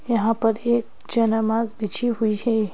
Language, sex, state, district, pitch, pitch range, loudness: Hindi, female, Madhya Pradesh, Bhopal, 225 Hz, 220-235 Hz, -20 LUFS